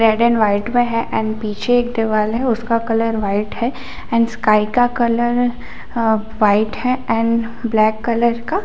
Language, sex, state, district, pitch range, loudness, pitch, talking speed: Hindi, female, Chhattisgarh, Bilaspur, 220-240 Hz, -17 LUFS, 230 Hz, 175 wpm